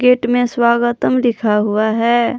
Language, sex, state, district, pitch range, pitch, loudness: Hindi, female, Jharkhand, Palamu, 230-245 Hz, 240 Hz, -15 LUFS